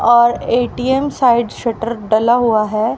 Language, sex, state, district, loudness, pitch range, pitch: Hindi, female, Haryana, Rohtak, -15 LUFS, 225-245 Hz, 235 Hz